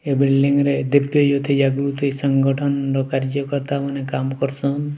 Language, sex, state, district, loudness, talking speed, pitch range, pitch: Odia, male, Odisha, Sambalpur, -19 LUFS, 155 wpm, 135-140 Hz, 140 Hz